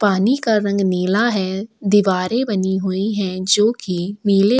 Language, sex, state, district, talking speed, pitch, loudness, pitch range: Hindi, female, Chhattisgarh, Sukma, 170 wpm, 200 Hz, -18 LUFS, 190-215 Hz